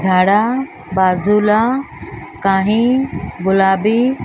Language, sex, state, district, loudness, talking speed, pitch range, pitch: Marathi, male, Maharashtra, Mumbai Suburban, -15 LUFS, 70 wpm, 190-240 Hz, 210 Hz